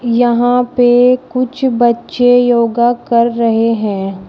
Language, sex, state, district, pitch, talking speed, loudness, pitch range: Hindi, female, Uttar Pradesh, Shamli, 240 Hz, 110 wpm, -12 LUFS, 235-245 Hz